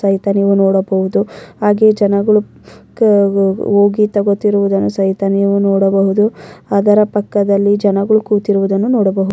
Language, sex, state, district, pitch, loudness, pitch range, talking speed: Kannada, female, Karnataka, Mysore, 200 Hz, -13 LUFS, 195-205 Hz, 95 wpm